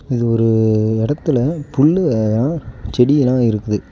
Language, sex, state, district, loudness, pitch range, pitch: Tamil, male, Tamil Nadu, Nilgiris, -16 LUFS, 110-145 Hz, 120 Hz